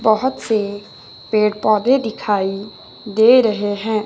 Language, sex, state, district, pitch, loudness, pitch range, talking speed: Hindi, male, Himachal Pradesh, Shimla, 215 Hz, -17 LUFS, 205-225 Hz, 120 wpm